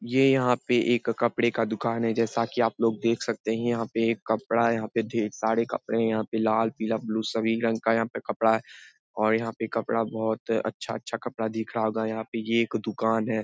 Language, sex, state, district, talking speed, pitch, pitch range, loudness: Hindi, male, Bihar, Lakhisarai, 240 wpm, 115 Hz, 110-115 Hz, -26 LUFS